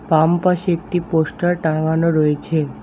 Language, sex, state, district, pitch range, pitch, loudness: Bengali, male, West Bengal, Alipurduar, 155-175 Hz, 165 Hz, -18 LUFS